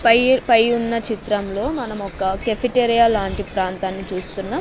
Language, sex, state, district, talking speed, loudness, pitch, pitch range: Telugu, female, Andhra Pradesh, Sri Satya Sai, 130 wpm, -20 LUFS, 225 Hz, 195-235 Hz